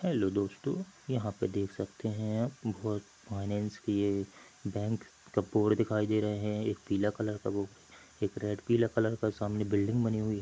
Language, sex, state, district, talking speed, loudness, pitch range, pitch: Hindi, male, Chhattisgarh, Bilaspur, 185 wpm, -33 LUFS, 100-110 Hz, 105 Hz